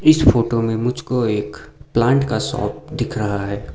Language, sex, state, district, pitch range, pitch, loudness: Hindi, male, Sikkim, Gangtok, 105-130 Hz, 115 Hz, -19 LUFS